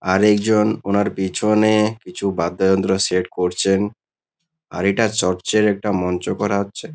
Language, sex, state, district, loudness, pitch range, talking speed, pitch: Bengali, male, West Bengal, Kolkata, -19 LUFS, 95-105 Hz, 130 wpm, 100 Hz